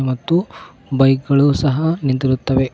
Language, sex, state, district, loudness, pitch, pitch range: Kannada, male, Karnataka, Koppal, -17 LUFS, 135 Hz, 130-145 Hz